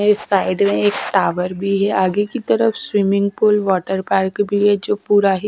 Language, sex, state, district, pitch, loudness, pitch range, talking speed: Hindi, female, Punjab, Kapurthala, 200 Hz, -17 LUFS, 195-210 Hz, 195 wpm